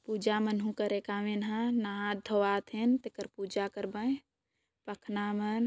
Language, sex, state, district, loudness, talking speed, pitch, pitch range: Sadri, female, Chhattisgarh, Jashpur, -33 LUFS, 140 wpm, 210 Hz, 205-220 Hz